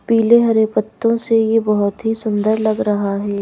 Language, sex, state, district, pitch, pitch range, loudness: Hindi, female, Madhya Pradesh, Bhopal, 220 Hz, 210-225 Hz, -16 LUFS